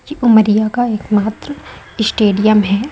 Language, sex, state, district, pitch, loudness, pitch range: Hindi, female, Madhya Pradesh, Umaria, 215 Hz, -13 LUFS, 210-240 Hz